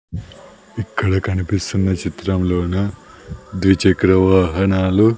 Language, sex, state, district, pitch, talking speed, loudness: Telugu, male, Andhra Pradesh, Sri Satya Sai, 95 Hz, 60 wpm, -17 LUFS